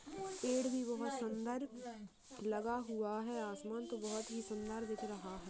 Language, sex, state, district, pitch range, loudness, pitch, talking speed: Hindi, female, Chhattisgarh, Sarguja, 215-245 Hz, -42 LUFS, 225 Hz, 165 wpm